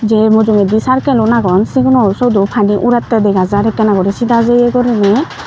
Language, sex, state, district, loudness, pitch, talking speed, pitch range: Chakma, female, Tripura, Unakoti, -11 LUFS, 220 Hz, 185 wpm, 205-240 Hz